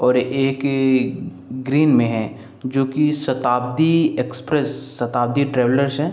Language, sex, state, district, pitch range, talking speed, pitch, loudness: Hindi, male, Uttar Pradesh, Jalaun, 125-140 Hz, 125 wpm, 135 Hz, -19 LUFS